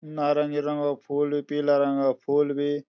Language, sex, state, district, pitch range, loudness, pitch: Garhwali, male, Uttarakhand, Uttarkashi, 140-145 Hz, -25 LUFS, 145 Hz